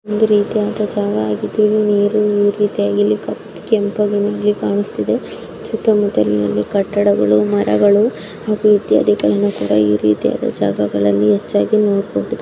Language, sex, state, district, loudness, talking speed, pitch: Kannada, male, Karnataka, Dharwad, -15 LUFS, 90 wpm, 205 Hz